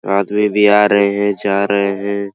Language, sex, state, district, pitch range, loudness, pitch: Hindi, male, Bihar, Araria, 100-105 Hz, -14 LUFS, 100 Hz